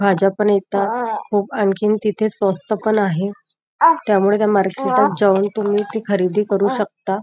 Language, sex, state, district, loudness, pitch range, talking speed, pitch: Marathi, female, Maharashtra, Nagpur, -18 LUFS, 195-215 Hz, 140 wpm, 205 Hz